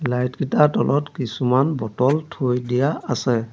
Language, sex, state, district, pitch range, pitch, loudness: Assamese, male, Assam, Sonitpur, 125-140 Hz, 125 Hz, -21 LUFS